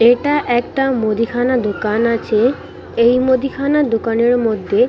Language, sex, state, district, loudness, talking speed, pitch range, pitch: Bengali, female, West Bengal, Purulia, -16 LUFS, 110 wpm, 230-270 Hz, 245 Hz